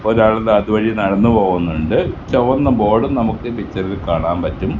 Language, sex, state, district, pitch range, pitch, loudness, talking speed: Malayalam, male, Kerala, Kasaragod, 85-110 Hz, 95 Hz, -16 LUFS, 135 wpm